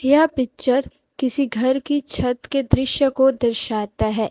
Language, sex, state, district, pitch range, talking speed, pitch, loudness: Hindi, female, Chhattisgarh, Raipur, 245-280 Hz, 155 wpm, 260 Hz, -20 LUFS